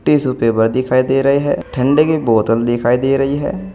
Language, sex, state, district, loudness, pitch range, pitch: Hindi, male, Uttar Pradesh, Saharanpur, -15 LUFS, 120-140 Hz, 130 Hz